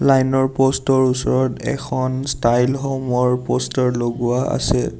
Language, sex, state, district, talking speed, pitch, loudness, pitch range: Assamese, male, Assam, Sonitpur, 145 wpm, 130 Hz, -19 LUFS, 125-135 Hz